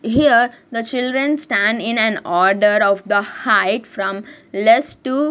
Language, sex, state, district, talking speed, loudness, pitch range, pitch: English, female, Punjab, Kapurthala, 145 wpm, -16 LUFS, 200-255 Hz, 225 Hz